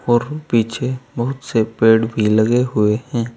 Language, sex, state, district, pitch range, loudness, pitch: Hindi, male, Uttar Pradesh, Saharanpur, 110-125 Hz, -17 LUFS, 120 Hz